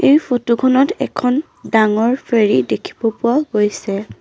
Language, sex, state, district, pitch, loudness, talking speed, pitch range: Assamese, female, Assam, Sonitpur, 235 Hz, -16 LUFS, 115 wpm, 210-260 Hz